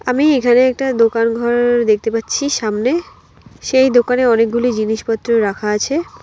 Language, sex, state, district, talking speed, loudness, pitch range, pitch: Bengali, female, West Bengal, Alipurduar, 135 wpm, -15 LUFS, 225-260 Hz, 240 Hz